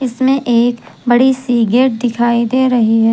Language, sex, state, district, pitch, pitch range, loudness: Hindi, female, Jharkhand, Garhwa, 240 Hz, 235-260 Hz, -13 LUFS